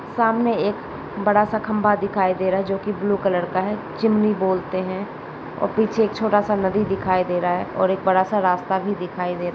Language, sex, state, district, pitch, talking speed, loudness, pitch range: Hindi, female, Uttar Pradesh, Jalaun, 195 Hz, 240 wpm, -21 LUFS, 185-210 Hz